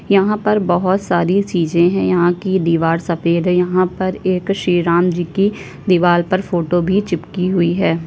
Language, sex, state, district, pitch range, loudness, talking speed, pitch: Hindi, female, Uttar Pradesh, Jyotiba Phule Nagar, 175-190 Hz, -16 LUFS, 185 wpm, 180 Hz